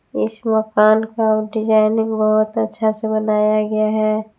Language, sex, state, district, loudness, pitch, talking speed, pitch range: Hindi, female, Jharkhand, Palamu, -17 LUFS, 215 Hz, 135 wpm, 215-220 Hz